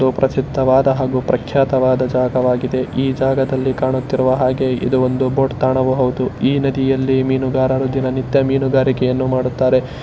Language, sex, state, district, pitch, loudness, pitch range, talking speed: Kannada, male, Karnataka, Shimoga, 130 Hz, -16 LUFS, 130-135 Hz, 110 wpm